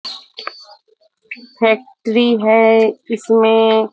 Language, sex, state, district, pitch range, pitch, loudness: Hindi, female, Bihar, Muzaffarpur, 220-245 Hz, 225 Hz, -14 LUFS